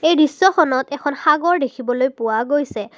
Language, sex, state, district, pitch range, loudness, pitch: Assamese, female, Assam, Kamrup Metropolitan, 255-310 Hz, -17 LUFS, 285 Hz